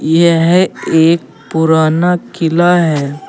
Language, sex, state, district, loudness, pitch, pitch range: Hindi, male, Uttar Pradesh, Saharanpur, -12 LUFS, 165 Hz, 160-175 Hz